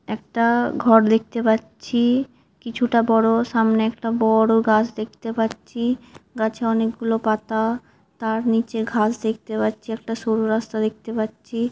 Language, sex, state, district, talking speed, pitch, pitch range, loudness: Bengali, female, West Bengal, Dakshin Dinajpur, 130 wpm, 225 Hz, 220-230 Hz, -21 LUFS